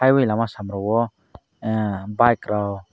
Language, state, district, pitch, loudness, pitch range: Kokborok, Tripura, Dhalai, 105 Hz, -22 LUFS, 100-115 Hz